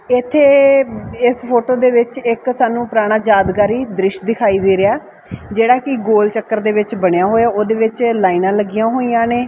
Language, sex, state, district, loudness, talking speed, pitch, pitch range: Punjabi, female, Punjab, Fazilka, -14 LUFS, 170 wpm, 225 Hz, 210-245 Hz